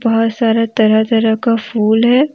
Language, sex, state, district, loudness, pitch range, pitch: Hindi, female, Jharkhand, Deoghar, -13 LUFS, 220-230 Hz, 225 Hz